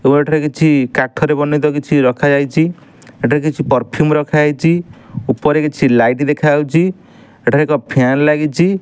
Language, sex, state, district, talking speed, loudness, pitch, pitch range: Odia, male, Odisha, Nuapada, 130 wpm, -14 LUFS, 150 Hz, 140-155 Hz